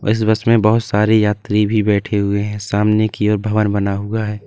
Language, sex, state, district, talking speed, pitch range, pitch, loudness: Hindi, male, Uttar Pradesh, Lalitpur, 230 wpm, 105-110 Hz, 105 Hz, -16 LUFS